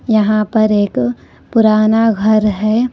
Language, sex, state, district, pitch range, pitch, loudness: Hindi, female, Karnataka, Koppal, 215-225 Hz, 215 Hz, -13 LUFS